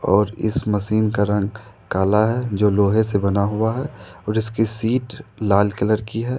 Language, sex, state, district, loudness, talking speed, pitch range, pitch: Hindi, male, Jharkhand, Ranchi, -20 LUFS, 185 wpm, 100-110 Hz, 110 Hz